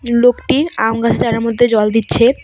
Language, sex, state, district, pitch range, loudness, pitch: Bengali, female, West Bengal, Cooch Behar, 225-245 Hz, -14 LUFS, 235 Hz